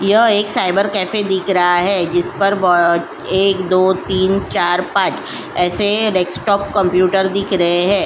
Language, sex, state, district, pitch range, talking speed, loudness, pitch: Hindi, female, Uttar Pradesh, Jyotiba Phule Nagar, 180-200 Hz, 150 wpm, -15 LUFS, 190 Hz